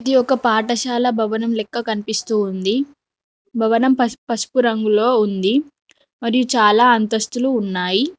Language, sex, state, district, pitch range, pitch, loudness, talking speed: Telugu, female, Telangana, Mahabubabad, 220-255 Hz, 235 Hz, -18 LUFS, 115 wpm